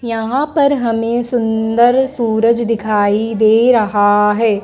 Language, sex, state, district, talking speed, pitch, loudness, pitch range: Hindi, female, Madhya Pradesh, Dhar, 115 wpm, 230 Hz, -14 LUFS, 220-240 Hz